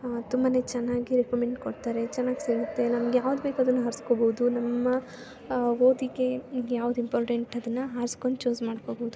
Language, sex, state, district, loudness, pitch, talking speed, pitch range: Kannada, female, Karnataka, Chamarajanagar, -28 LUFS, 245 Hz, 135 wpm, 240-255 Hz